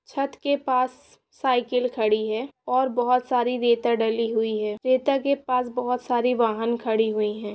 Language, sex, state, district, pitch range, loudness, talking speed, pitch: Hindi, female, Bihar, Saran, 225-255 Hz, -24 LUFS, 185 wpm, 245 Hz